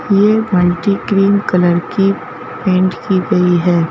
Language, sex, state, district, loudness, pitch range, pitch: Hindi, female, Madhya Pradesh, Bhopal, -14 LUFS, 180-200 Hz, 185 Hz